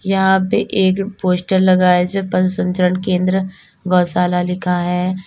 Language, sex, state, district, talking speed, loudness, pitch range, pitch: Hindi, female, Uttar Pradesh, Lalitpur, 150 wpm, -16 LUFS, 180-190 Hz, 185 Hz